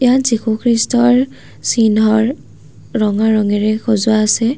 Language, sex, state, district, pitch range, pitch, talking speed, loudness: Assamese, female, Assam, Kamrup Metropolitan, 215-240 Hz, 225 Hz, 105 wpm, -14 LUFS